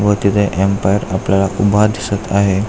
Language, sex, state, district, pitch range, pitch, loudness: Marathi, male, Maharashtra, Aurangabad, 95-105 Hz, 100 Hz, -15 LUFS